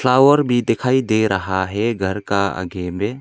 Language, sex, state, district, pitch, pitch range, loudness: Hindi, male, Arunachal Pradesh, Longding, 105 Hz, 95-125 Hz, -18 LUFS